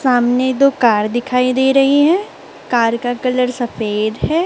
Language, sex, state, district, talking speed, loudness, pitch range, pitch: Hindi, female, Chhattisgarh, Raipur, 160 wpm, -15 LUFS, 240-270 Hz, 250 Hz